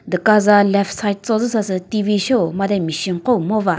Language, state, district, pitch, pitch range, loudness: Chakhesang, Nagaland, Dimapur, 200 Hz, 185-215 Hz, -17 LUFS